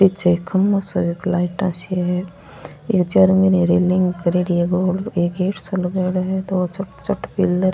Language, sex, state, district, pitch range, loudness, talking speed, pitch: Rajasthani, female, Rajasthan, Churu, 175-190 Hz, -19 LUFS, 200 wpm, 185 Hz